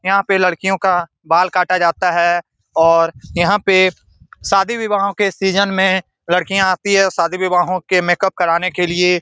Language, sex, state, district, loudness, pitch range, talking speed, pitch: Hindi, male, Bihar, Saran, -15 LUFS, 175-195 Hz, 170 wpm, 185 Hz